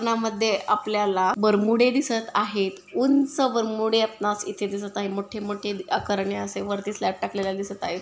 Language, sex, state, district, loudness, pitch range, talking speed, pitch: Marathi, female, Maharashtra, Dhule, -24 LUFS, 200-225 Hz, 140 wpm, 210 Hz